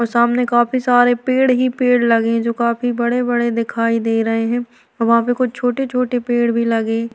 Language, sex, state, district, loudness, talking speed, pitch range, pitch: Hindi, female, Uttar Pradesh, Varanasi, -17 LUFS, 200 wpm, 230-245 Hz, 240 Hz